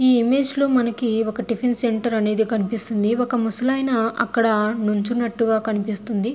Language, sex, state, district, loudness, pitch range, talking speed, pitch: Telugu, female, Andhra Pradesh, Guntur, -20 LUFS, 220-245 Hz, 130 wpm, 230 Hz